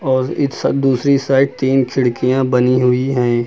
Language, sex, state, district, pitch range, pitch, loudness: Hindi, male, Uttar Pradesh, Lucknow, 125-135 Hz, 130 Hz, -15 LUFS